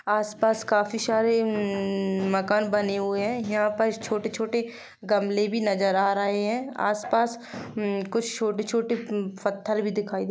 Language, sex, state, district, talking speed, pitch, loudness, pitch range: Hindi, female, Chhattisgarh, Rajnandgaon, 130 wpm, 210 Hz, -26 LUFS, 200-225 Hz